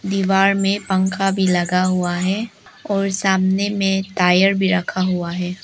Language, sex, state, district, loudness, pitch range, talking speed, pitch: Hindi, female, Arunachal Pradesh, Lower Dibang Valley, -18 LUFS, 185-195 Hz, 160 wpm, 190 Hz